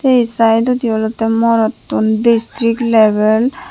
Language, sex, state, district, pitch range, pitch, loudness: Chakma, female, Tripura, Unakoti, 220-235 Hz, 230 Hz, -13 LUFS